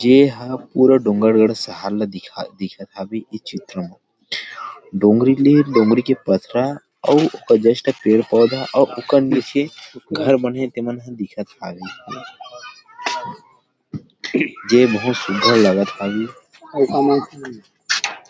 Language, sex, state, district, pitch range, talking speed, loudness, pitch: Chhattisgarhi, male, Chhattisgarh, Rajnandgaon, 110-140 Hz, 125 wpm, -17 LUFS, 125 Hz